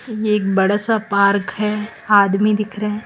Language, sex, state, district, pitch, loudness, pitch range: Hindi, female, Chhattisgarh, Raipur, 210 Hz, -17 LUFS, 200-210 Hz